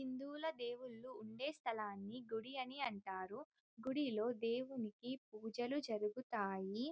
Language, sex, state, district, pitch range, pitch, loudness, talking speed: Telugu, female, Telangana, Karimnagar, 220-265 Hz, 245 Hz, -45 LUFS, 95 wpm